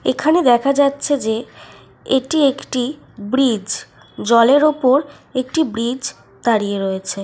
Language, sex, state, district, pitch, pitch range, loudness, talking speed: Bengali, female, Jharkhand, Sahebganj, 255 Hz, 230-280 Hz, -17 LUFS, 75 wpm